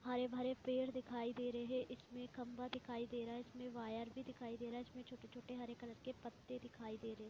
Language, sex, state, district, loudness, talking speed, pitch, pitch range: Hindi, female, Uttar Pradesh, Varanasi, -48 LUFS, 270 wpm, 245 Hz, 235-250 Hz